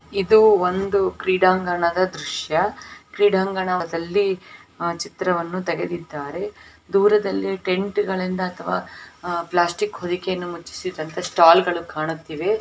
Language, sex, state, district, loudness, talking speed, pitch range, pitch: Kannada, female, Karnataka, Belgaum, -21 LUFS, 160 wpm, 170-195 Hz, 185 Hz